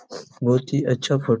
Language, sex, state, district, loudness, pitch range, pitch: Hindi, male, Jharkhand, Jamtara, -22 LUFS, 125-140 Hz, 130 Hz